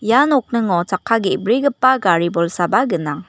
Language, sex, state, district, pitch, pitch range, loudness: Garo, female, Meghalaya, West Garo Hills, 195 Hz, 175-245 Hz, -16 LUFS